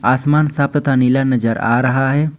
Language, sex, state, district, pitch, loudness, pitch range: Hindi, male, Jharkhand, Ranchi, 135 Hz, -15 LUFS, 125-145 Hz